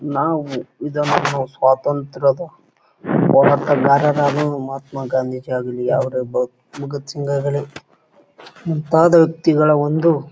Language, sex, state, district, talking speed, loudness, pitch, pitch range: Kannada, male, Karnataka, Bijapur, 80 wpm, -18 LUFS, 145 Hz, 135-150 Hz